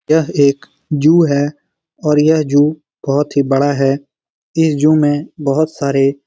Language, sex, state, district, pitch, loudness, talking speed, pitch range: Hindi, male, Bihar, Lakhisarai, 145 Hz, -14 LUFS, 165 wpm, 140-155 Hz